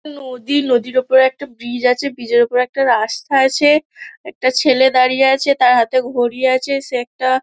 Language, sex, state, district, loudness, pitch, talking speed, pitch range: Bengali, female, West Bengal, Dakshin Dinajpur, -15 LUFS, 255 Hz, 185 wpm, 250-275 Hz